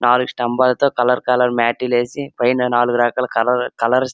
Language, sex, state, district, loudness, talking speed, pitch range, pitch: Telugu, male, Andhra Pradesh, Srikakulam, -17 LUFS, 190 wpm, 120-125 Hz, 125 Hz